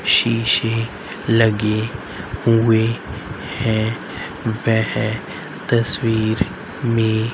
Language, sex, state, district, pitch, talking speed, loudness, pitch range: Hindi, male, Haryana, Rohtak, 115 Hz, 55 wpm, -19 LUFS, 110-115 Hz